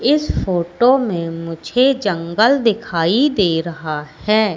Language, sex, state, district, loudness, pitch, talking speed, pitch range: Hindi, female, Madhya Pradesh, Katni, -17 LUFS, 185 Hz, 120 wpm, 165-240 Hz